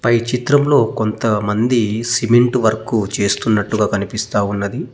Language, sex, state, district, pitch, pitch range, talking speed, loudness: Telugu, male, Telangana, Mahabubabad, 110 Hz, 105-120 Hz, 110 wpm, -16 LUFS